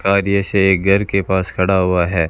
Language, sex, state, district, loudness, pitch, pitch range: Hindi, male, Rajasthan, Bikaner, -16 LUFS, 95 Hz, 95-100 Hz